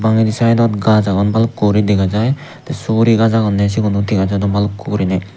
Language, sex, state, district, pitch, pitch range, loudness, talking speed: Chakma, male, Tripura, Unakoti, 105 Hz, 100-115 Hz, -15 LUFS, 210 wpm